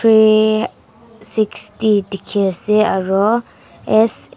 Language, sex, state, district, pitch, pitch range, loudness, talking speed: Nagamese, female, Nagaland, Dimapur, 215 Hz, 205-220 Hz, -16 LUFS, 80 wpm